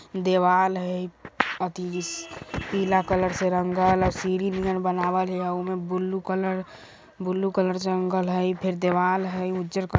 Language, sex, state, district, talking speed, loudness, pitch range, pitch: Bajjika, female, Bihar, Vaishali, 175 wpm, -25 LUFS, 180-185 Hz, 185 Hz